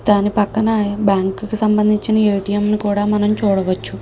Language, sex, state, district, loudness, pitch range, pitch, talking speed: Telugu, female, Andhra Pradesh, Krishna, -17 LUFS, 200-210 Hz, 205 Hz, 165 wpm